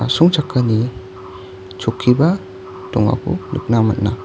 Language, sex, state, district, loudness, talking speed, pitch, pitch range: Garo, male, Meghalaya, West Garo Hills, -17 LUFS, 70 wpm, 115 Hz, 95-130 Hz